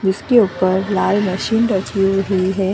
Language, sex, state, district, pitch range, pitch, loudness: Hindi, female, Bihar, Gaya, 190-200 Hz, 195 Hz, -16 LUFS